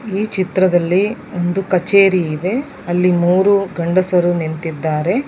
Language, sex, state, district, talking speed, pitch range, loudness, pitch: Kannada, female, Karnataka, Dakshina Kannada, 115 wpm, 175-195 Hz, -16 LUFS, 180 Hz